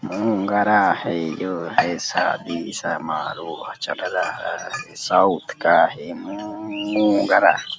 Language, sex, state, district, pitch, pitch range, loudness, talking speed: Hindi, male, Uttar Pradesh, Deoria, 105 Hz, 95-105 Hz, -21 LUFS, 110 wpm